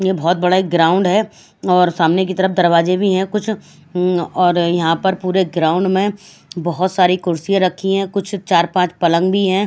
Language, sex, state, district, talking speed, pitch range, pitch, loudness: Hindi, female, Haryana, Rohtak, 200 wpm, 175-190 Hz, 180 Hz, -16 LUFS